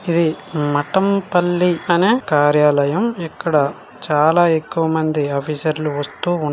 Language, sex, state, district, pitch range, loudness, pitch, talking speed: Telugu, male, Telangana, Nalgonda, 150-175 Hz, -17 LUFS, 160 Hz, 110 wpm